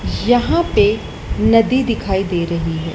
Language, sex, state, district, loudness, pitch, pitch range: Hindi, male, Madhya Pradesh, Dhar, -16 LUFS, 225 Hz, 170-260 Hz